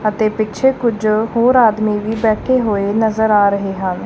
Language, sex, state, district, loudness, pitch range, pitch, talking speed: Punjabi, female, Punjab, Kapurthala, -15 LUFS, 210-225 Hz, 215 Hz, 175 wpm